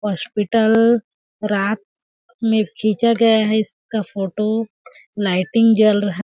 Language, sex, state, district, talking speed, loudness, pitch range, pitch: Hindi, female, Chhattisgarh, Balrampur, 105 wpm, -18 LUFS, 205-225 Hz, 215 Hz